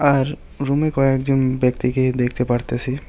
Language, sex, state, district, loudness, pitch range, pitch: Bengali, male, West Bengal, Alipurduar, -19 LUFS, 125-135 Hz, 130 Hz